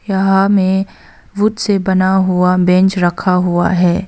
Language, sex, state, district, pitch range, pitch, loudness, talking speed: Hindi, female, Arunachal Pradesh, Papum Pare, 180-195 Hz, 190 Hz, -13 LUFS, 145 wpm